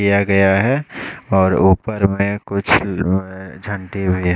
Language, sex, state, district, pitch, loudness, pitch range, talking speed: Hindi, male, Odisha, Khordha, 100 Hz, -17 LUFS, 95-100 Hz, 140 wpm